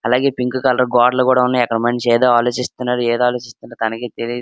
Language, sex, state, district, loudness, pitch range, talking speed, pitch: Telugu, male, Andhra Pradesh, Srikakulam, -16 LUFS, 120-125 Hz, 190 wpm, 125 Hz